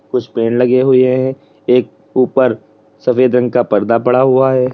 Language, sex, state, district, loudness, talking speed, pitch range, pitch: Hindi, male, Uttar Pradesh, Lalitpur, -13 LUFS, 175 wpm, 115-130 Hz, 125 Hz